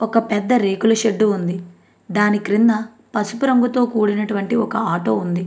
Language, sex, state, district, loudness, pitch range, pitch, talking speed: Telugu, female, Andhra Pradesh, Anantapur, -18 LUFS, 205-230 Hz, 215 Hz, 155 wpm